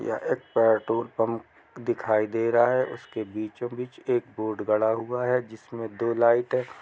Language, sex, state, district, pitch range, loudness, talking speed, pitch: Hindi, male, Bihar, East Champaran, 110-120 Hz, -26 LUFS, 175 wpm, 115 Hz